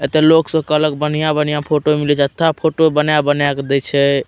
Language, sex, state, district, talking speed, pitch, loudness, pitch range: Maithili, male, Bihar, Madhepura, 210 wpm, 150 Hz, -15 LUFS, 145-155 Hz